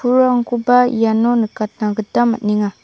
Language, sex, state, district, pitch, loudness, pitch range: Garo, female, Meghalaya, South Garo Hills, 235 Hz, -16 LUFS, 215-245 Hz